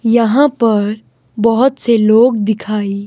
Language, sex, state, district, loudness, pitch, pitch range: Hindi, male, Himachal Pradesh, Shimla, -13 LUFS, 225 Hz, 210-240 Hz